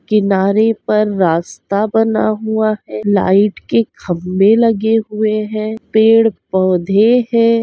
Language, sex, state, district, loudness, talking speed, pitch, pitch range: Hindi, female, Chhattisgarh, Raigarh, -14 LUFS, 110 wpm, 215 Hz, 195-225 Hz